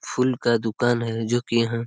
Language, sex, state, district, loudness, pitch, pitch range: Hindi, male, Jharkhand, Sahebganj, -23 LUFS, 115 Hz, 115-120 Hz